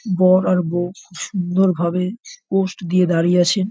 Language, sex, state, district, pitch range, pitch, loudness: Bengali, male, West Bengal, North 24 Parganas, 175-190 Hz, 185 Hz, -18 LUFS